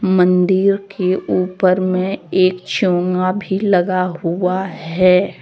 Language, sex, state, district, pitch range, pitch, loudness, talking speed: Hindi, female, Jharkhand, Deoghar, 180-190 Hz, 185 Hz, -16 LUFS, 110 wpm